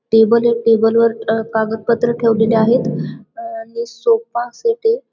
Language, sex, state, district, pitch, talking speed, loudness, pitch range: Marathi, female, Maharashtra, Dhule, 235 Hz, 130 wpm, -16 LUFS, 225-340 Hz